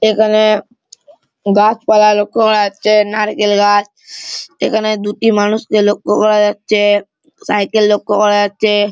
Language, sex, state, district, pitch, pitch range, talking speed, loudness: Bengali, male, West Bengal, Malda, 210 Hz, 205-220 Hz, 170 wpm, -13 LUFS